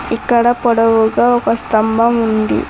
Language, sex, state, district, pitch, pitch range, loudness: Telugu, female, Telangana, Mahabubabad, 230 Hz, 225-240 Hz, -13 LUFS